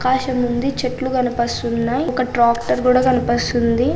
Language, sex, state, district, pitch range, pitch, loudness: Telugu, female, Andhra Pradesh, Anantapur, 240-255 Hz, 250 Hz, -18 LUFS